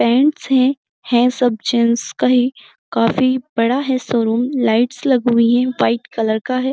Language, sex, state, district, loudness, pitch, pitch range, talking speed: Hindi, female, Uttar Pradesh, Jyotiba Phule Nagar, -16 LUFS, 245 Hz, 235-260 Hz, 170 wpm